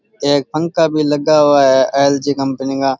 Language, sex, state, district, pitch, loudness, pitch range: Rajasthani, male, Rajasthan, Churu, 140 Hz, -14 LUFS, 135-150 Hz